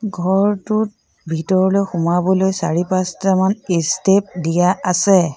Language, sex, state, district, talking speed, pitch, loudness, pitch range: Assamese, female, Assam, Sonitpur, 90 wpm, 185 Hz, -17 LUFS, 175-195 Hz